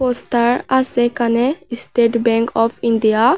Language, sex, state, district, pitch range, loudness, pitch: Bengali, female, Tripura, West Tripura, 230-250 Hz, -17 LUFS, 240 Hz